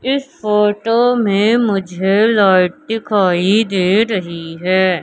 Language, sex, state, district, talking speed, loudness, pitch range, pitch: Hindi, male, Madhya Pradesh, Katni, 105 wpm, -14 LUFS, 185-225 Hz, 205 Hz